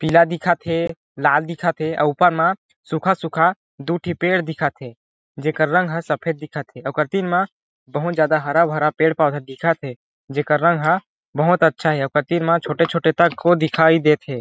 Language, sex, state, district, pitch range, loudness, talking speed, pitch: Chhattisgarhi, male, Chhattisgarh, Jashpur, 150-170 Hz, -19 LUFS, 220 wpm, 160 Hz